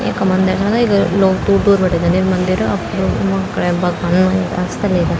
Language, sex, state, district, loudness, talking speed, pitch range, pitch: Garhwali, female, Uttarakhand, Tehri Garhwal, -15 LUFS, 230 wpm, 175-195 Hz, 185 Hz